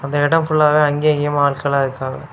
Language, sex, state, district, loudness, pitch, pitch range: Tamil, male, Tamil Nadu, Kanyakumari, -16 LUFS, 145 Hz, 140-150 Hz